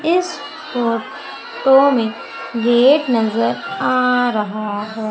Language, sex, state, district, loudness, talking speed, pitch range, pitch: Hindi, female, Madhya Pradesh, Umaria, -17 LUFS, 95 wpm, 220-270 Hz, 235 Hz